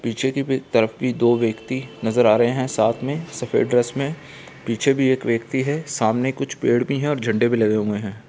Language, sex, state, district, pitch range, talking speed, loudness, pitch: Hindi, male, Bihar, Gaya, 115-135 Hz, 225 wpm, -21 LUFS, 125 Hz